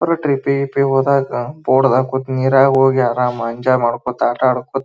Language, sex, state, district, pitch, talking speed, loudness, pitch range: Kannada, male, Karnataka, Bijapur, 130 Hz, 175 wpm, -16 LUFS, 125-135 Hz